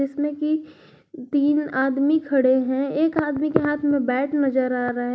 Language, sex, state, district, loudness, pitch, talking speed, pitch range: Hindi, female, Jharkhand, Garhwa, -22 LUFS, 285 Hz, 185 wpm, 265-300 Hz